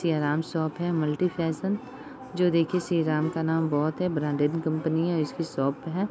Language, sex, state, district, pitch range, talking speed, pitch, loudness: Hindi, female, Bihar, Madhepura, 155-175 Hz, 185 wpm, 165 Hz, -27 LUFS